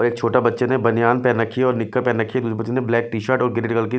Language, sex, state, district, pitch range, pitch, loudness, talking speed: Hindi, male, Bihar, West Champaran, 115-125 Hz, 120 Hz, -19 LUFS, 345 wpm